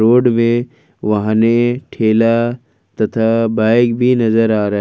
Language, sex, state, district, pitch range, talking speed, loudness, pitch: Hindi, male, Jharkhand, Ranchi, 110-120 Hz, 135 wpm, -14 LUFS, 115 Hz